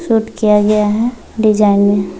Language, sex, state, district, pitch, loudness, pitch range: Hindi, female, Bihar, Muzaffarpur, 210 Hz, -13 LUFS, 205-225 Hz